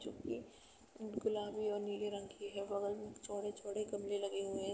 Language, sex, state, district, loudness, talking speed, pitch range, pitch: Hindi, female, Uttar Pradesh, Jalaun, -42 LUFS, 175 wpm, 200-210 Hz, 205 Hz